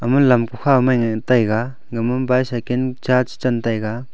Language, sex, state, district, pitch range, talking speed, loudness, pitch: Wancho, male, Arunachal Pradesh, Longding, 115-130 Hz, 160 wpm, -18 LUFS, 125 Hz